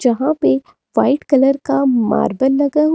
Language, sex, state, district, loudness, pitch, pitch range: Hindi, female, Himachal Pradesh, Shimla, -16 LUFS, 275 Hz, 265-290 Hz